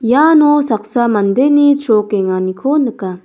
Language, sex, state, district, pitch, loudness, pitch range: Garo, female, Meghalaya, South Garo Hills, 240 Hz, -12 LUFS, 205-285 Hz